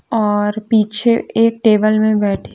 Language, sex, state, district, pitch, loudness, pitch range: Hindi, female, Bihar, West Champaran, 215 Hz, -15 LUFS, 210-225 Hz